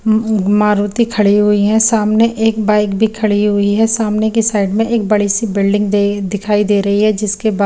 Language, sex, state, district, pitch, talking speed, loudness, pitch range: Hindi, female, Chandigarh, Chandigarh, 210 Hz, 220 wpm, -13 LUFS, 205-220 Hz